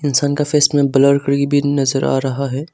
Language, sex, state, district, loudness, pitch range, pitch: Hindi, male, Arunachal Pradesh, Longding, -15 LUFS, 135-145 Hz, 140 Hz